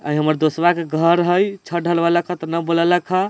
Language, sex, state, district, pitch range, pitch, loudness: Bajjika, male, Bihar, Vaishali, 165-175 Hz, 170 Hz, -18 LUFS